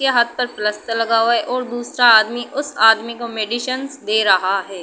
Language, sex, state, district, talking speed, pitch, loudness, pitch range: Hindi, female, Uttar Pradesh, Budaun, 210 wpm, 235 Hz, -17 LUFS, 220-245 Hz